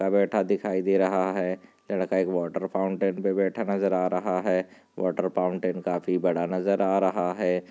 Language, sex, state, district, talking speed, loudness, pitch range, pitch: Hindi, male, Chhattisgarh, Raigarh, 185 wpm, -26 LUFS, 90-95 Hz, 95 Hz